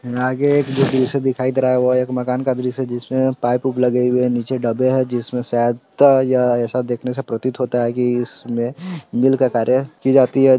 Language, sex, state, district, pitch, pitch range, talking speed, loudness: Hindi, male, Bihar, Sitamarhi, 125 Hz, 120-130 Hz, 245 wpm, -18 LUFS